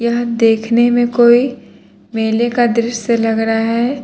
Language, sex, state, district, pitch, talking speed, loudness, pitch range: Hindi, male, Uttar Pradesh, Muzaffarnagar, 235 Hz, 150 wpm, -14 LUFS, 225-240 Hz